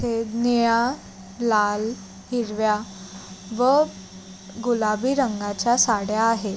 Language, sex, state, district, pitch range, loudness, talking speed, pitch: Marathi, female, Maharashtra, Sindhudurg, 195-240 Hz, -22 LUFS, 80 wpm, 220 Hz